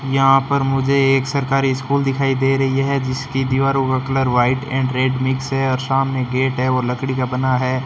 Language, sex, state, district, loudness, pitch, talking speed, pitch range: Hindi, male, Rajasthan, Bikaner, -18 LUFS, 135 Hz, 215 wpm, 130-135 Hz